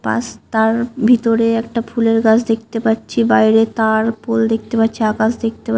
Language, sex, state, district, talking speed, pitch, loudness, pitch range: Bengali, female, West Bengal, Dakshin Dinajpur, 165 wpm, 225 Hz, -16 LUFS, 220-230 Hz